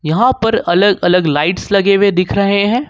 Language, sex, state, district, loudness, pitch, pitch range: Hindi, male, Jharkhand, Ranchi, -13 LUFS, 200 Hz, 180-205 Hz